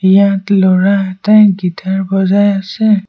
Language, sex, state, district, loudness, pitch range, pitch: Assamese, male, Assam, Sonitpur, -11 LUFS, 190-200 Hz, 195 Hz